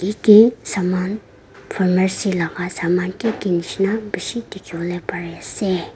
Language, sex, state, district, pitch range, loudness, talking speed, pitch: Nagamese, female, Nagaland, Dimapur, 180-205 Hz, -19 LUFS, 110 wpm, 185 Hz